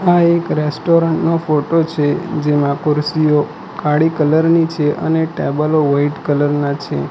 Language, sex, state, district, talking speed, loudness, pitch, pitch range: Gujarati, male, Gujarat, Valsad, 150 wpm, -15 LUFS, 150 Hz, 145-165 Hz